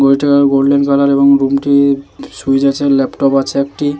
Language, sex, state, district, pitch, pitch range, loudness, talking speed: Bengali, male, West Bengal, Jalpaiguri, 140 Hz, 135-140 Hz, -12 LUFS, 180 wpm